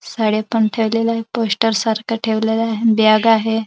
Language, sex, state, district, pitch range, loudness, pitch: Marathi, female, Maharashtra, Dhule, 220-225 Hz, -17 LUFS, 225 Hz